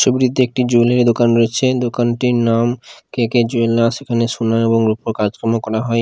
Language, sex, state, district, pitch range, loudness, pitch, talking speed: Bengali, male, Odisha, Khordha, 115-120 Hz, -16 LUFS, 115 Hz, 170 wpm